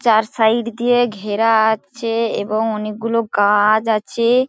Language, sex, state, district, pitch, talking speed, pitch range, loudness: Bengali, female, West Bengal, Paschim Medinipur, 225 Hz, 120 wpm, 215-230 Hz, -17 LUFS